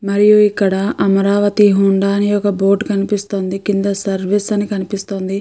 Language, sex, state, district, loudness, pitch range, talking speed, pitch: Telugu, female, Andhra Pradesh, Guntur, -15 LUFS, 195-205 Hz, 120 wpm, 200 Hz